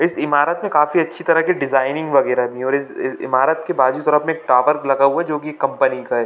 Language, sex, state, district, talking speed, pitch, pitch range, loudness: Hindi, male, Jharkhand, Sahebganj, 270 wpm, 150 Hz, 135-160 Hz, -17 LUFS